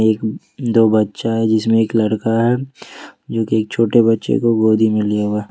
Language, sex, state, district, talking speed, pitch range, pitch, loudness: Hindi, male, Jharkhand, Ranchi, 185 wpm, 110-115 Hz, 110 Hz, -16 LUFS